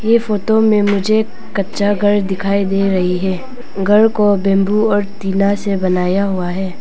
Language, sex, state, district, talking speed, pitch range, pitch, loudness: Hindi, female, Arunachal Pradesh, Papum Pare, 165 wpm, 195-210 Hz, 200 Hz, -15 LUFS